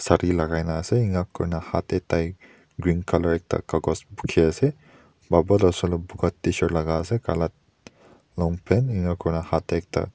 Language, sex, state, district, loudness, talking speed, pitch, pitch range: Nagamese, male, Nagaland, Dimapur, -24 LUFS, 130 wpm, 85 Hz, 85-95 Hz